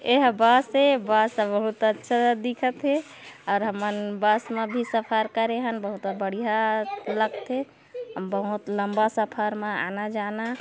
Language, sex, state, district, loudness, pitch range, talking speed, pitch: Hindi, female, Chhattisgarh, Korba, -25 LUFS, 210-240 Hz, 145 wpm, 220 Hz